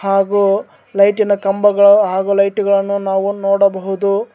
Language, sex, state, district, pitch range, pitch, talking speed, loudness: Kannada, male, Karnataka, Bangalore, 195-200 Hz, 200 Hz, 95 wpm, -14 LUFS